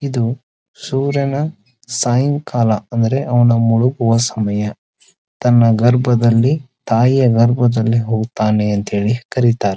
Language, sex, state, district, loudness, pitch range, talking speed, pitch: Kannada, male, Karnataka, Dharwad, -15 LUFS, 115-125 Hz, 90 wpm, 120 Hz